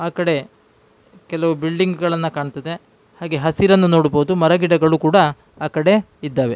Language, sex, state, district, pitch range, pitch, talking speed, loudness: Kannada, male, Karnataka, Dakshina Kannada, 155-175 Hz, 165 Hz, 135 wpm, -17 LUFS